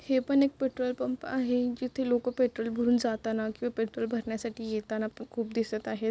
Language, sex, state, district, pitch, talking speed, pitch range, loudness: Marathi, female, Maharashtra, Solapur, 235 Hz, 185 wpm, 225-250 Hz, -31 LUFS